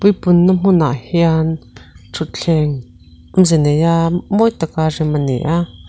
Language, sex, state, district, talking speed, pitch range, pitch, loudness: Mizo, female, Mizoram, Aizawl, 120 wpm, 130-175 Hz, 160 Hz, -15 LUFS